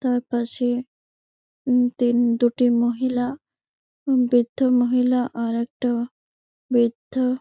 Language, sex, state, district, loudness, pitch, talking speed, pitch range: Bengali, female, West Bengal, Malda, -22 LUFS, 245 Hz, 80 wpm, 240-250 Hz